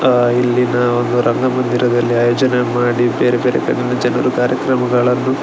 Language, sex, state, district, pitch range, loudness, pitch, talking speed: Kannada, male, Karnataka, Dakshina Kannada, 120-125 Hz, -15 LUFS, 125 Hz, 135 wpm